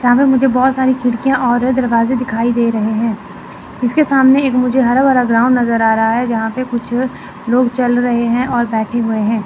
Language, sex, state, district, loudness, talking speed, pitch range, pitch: Hindi, female, Chandigarh, Chandigarh, -14 LUFS, 215 wpm, 230-255 Hz, 245 Hz